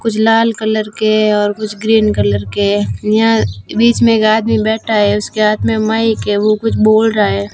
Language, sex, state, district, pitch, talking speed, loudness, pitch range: Hindi, female, Rajasthan, Jaisalmer, 215 Hz, 225 wpm, -13 LUFS, 160-220 Hz